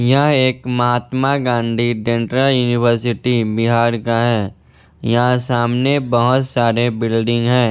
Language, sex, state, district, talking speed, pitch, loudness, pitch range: Hindi, male, Bihar, West Champaran, 115 wpm, 120 Hz, -16 LUFS, 115-125 Hz